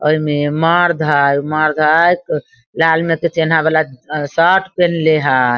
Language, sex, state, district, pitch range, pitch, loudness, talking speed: Hindi, female, Bihar, Sitamarhi, 145-165 Hz, 155 Hz, -14 LUFS, 150 wpm